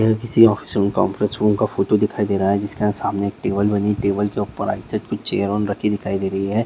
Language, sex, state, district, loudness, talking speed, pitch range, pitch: Hindi, male, Chhattisgarh, Jashpur, -20 LUFS, 225 wpm, 100-105 Hz, 105 Hz